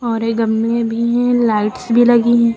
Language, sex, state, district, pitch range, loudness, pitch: Hindi, female, Uttar Pradesh, Lucknow, 225-240 Hz, -15 LUFS, 235 Hz